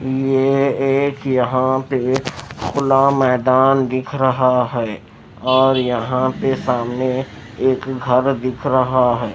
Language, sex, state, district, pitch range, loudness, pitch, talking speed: Hindi, male, Maharashtra, Mumbai Suburban, 125-135 Hz, -17 LUFS, 130 Hz, 110 wpm